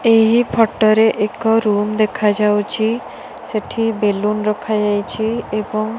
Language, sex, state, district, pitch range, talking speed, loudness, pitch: Odia, female, Odisha, Nuapada, 210-225 Hz, 110 wpm, -17 LUFS, 215 Hz